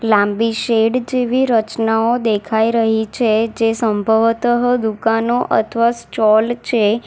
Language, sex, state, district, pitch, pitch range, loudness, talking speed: Gujarati, female, Gujarat, Valsad, 225 Hz, 220-240 Hz, -16 LUFS, 110 wpm